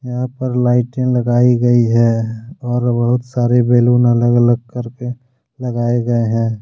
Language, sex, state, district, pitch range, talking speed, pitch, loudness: Hindi, male, Jharkhand, Deoghar, 120-125 Hz, 145 wpm, 120 Hz, -15 LUFS